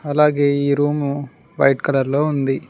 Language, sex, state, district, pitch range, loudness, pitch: Telugu, male, Telangana, Mahabubabad, 135-145 Hz, -18 LUFS, 140 Hz